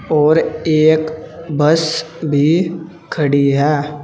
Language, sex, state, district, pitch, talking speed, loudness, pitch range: Hindi, male, Uttar Pradesh, Saharanpur, 155 Hz, 90 wpm, -15 LUFS, 150-160 Hz